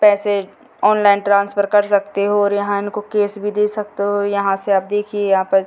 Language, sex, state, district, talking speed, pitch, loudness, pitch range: Hindi, female, Bihar, Purnia, 220 wpm, 205 Hz, -17 LUFS, 200-205 Hz